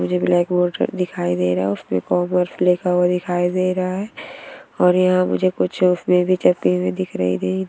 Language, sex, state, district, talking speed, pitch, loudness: Hindi, female, Bihar, Araria, 200 wpm, 175 Hz, -19 LUFS